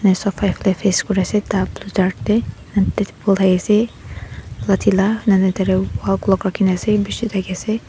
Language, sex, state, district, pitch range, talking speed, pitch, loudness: Nagamese, female, Nagaland, Dimapur, 190-205 Hz, 165 wpm, 195 Hz, -18 LUFS